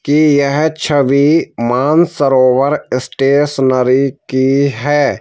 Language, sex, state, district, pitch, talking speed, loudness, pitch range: Hindi, male, Madhya Pradesh, Bhopal, 140 Hz, 90 wpm, -12 LUFS, 130-145 Hz